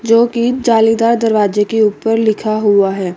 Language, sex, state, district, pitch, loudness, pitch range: Hindi, female, Chandigarh, Chandigarh, 225 Hz, -13 LUFS, 210-230 Hz